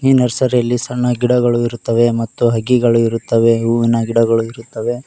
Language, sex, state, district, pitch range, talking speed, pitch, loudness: Kannada, male, Karnataka, Koppal, 115-125 Hz, 140 wpm, 120 Hz, -15 LUFS